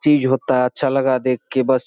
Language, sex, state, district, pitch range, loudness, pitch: Hindi, male, Bihar, Saharsa, 130-135 Hz, -18 LUFS, 130 Hz